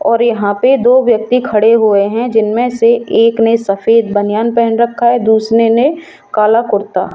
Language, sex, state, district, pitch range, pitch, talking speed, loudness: Hindi, female, Rajasthan, Jaipur, 215-240 Hz, 230 Hz, 175 wpm, -11 LUFS